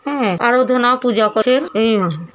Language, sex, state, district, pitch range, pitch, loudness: Bengali, female, West Bengal, Kolkata, 215-255 Hz, 240 Hz, -15 LUFS